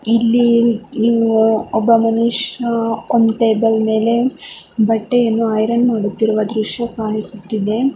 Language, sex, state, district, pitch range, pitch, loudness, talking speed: Kannada, female, Karnataka, Mysore, 220-235 Hz, 225 Hz, -16 LUFS, 85 wpm